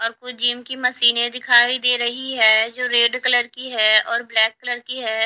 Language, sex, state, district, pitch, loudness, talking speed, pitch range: Hindi, female, Haryana, Charkhi Dadri, 240 Hz, -17 LUFS, 215 wpm, 230-250 Hz